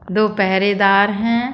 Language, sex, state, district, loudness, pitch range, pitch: Bundeli, female, Uttar Pradesh, Budaun, -16 LUFS, 195-215 Hz, 205 Hz